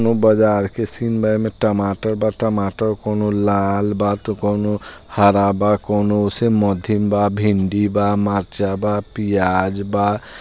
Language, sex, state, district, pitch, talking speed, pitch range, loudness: Bhojpuri, male, Bihar, East Champaran, 105 Hz, 150 wpm, 100-110 Hz, -18 LUFS